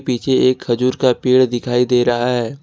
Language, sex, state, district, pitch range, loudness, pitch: Hindi, male, Jharkhand, Ranchi, 120-130 Hz, -16 LUFS, 125 Hz